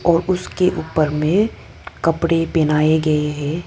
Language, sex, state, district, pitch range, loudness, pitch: Hindi, female, Arunachal Pradesh, Lower Dibang Valley, 155-170 Hz, -18 LUFS, 160 Hz